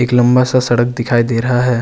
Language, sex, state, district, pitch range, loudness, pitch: Hindi, male, Uttarakhand, Tehri Garhwal, 120-125 Hz, -13 LUFS, 120 Hz